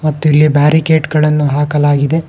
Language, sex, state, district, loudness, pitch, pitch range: Kannada, male, Karnataka, Bangalore, -11 LUFS, 150 Hz, 150-155 Hz